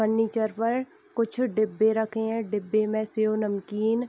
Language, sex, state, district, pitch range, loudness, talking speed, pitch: Hindi, female, Bihar, East Champaran, 215-225 Hz, -27 LUFS, 160 wpm, 220 Hz